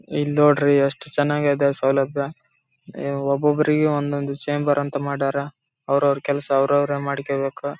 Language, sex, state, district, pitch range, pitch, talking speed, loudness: Kannada, male, Karnataka, Raichur, 140-145 Hz, 140 Hz, 100 wpm, -21 LUFS